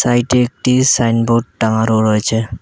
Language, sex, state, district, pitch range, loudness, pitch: Bengali, male, West Bengal, Cooch Behar, 110-120 Hz, -14 LUFS, 115 Hz